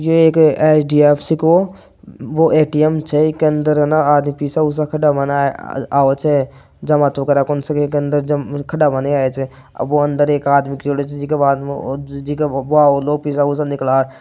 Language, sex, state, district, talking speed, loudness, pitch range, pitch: Marwari, male, Rajasthan, Nagaur, 75 wpm, -15 LUFS, 140-150 Hz, 145 Hz